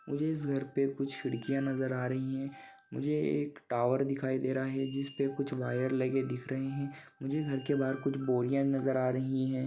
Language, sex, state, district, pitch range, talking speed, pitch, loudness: Hindi, male, Jharkhand, Sahebganj, 130-140 Hz, 215 wpm, 135 Hz, -33 LUFS